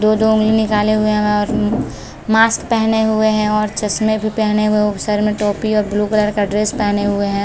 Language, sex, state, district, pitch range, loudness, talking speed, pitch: Hindi, female, Chhattisgarh, Balrampur, 210-220 Hz, -16 LUFS, 235 wpm, 215 Hz